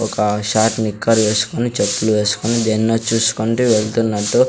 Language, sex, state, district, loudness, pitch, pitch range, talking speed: Telugu, male, Andhra Pradesh, Sri Satya Sai, -16 LUFS, 110 Hz, 105-115 Hz, 145 wpm